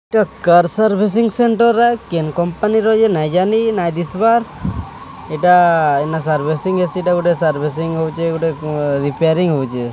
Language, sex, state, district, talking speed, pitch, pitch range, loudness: Odia, male, Odisha, Sambalpur, 120 wpm, 175 Hz, 155-215 Hz, -15 LUFS